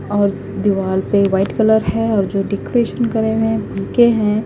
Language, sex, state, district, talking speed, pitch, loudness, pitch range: Hindi, female, Punjab, Kapurthala, 160 wpm, 210 Hz, -16 LUFS, 195-225 Hz